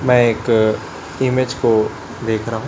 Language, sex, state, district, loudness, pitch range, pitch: Hindi, male, Chhattisgarh, Raipur, -17 LUFS, 110-125 Hz, 115 Hz